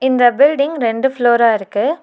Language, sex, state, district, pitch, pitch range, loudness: Tamil, female, Tamil Nadu, Nilgiris, 260 Hz, 235-280 Hz, -14 LUFS